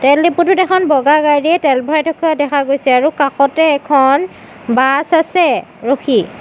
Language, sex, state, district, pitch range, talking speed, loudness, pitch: Assamese, female, Assam, Sonitpur, 275-325 Hz, 150 wpm, -13 LUFS, 290 Hz